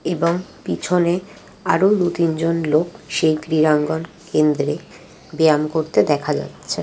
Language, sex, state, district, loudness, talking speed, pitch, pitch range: Bengali, female, West Bengal, Jalpaiguri, -19 LUFS, 105 wpm, 160 Hz, 155-170 Hz